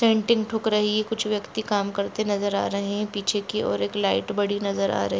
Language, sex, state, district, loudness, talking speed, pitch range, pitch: Hindi, female, Jharkhand, Jamtara, -25 LUFS, 255 wpm, 200-215 Hz, 205 Hz